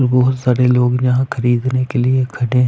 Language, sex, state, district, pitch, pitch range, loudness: Hindi, male, Punjab, Fazilka, 125 Hz, 125-130 Hz, -15 LUFS